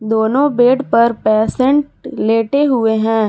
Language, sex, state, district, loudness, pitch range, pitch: Hindi, female, Jharkhand, Garhwa, -14 LUFS, 220-270 Hz, 230 Hz